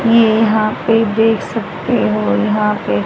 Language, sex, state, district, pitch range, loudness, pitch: Hindi, female, Haryana, Charkhi Dadri, 180-225 Hz, -14 LUFS, 215 Hz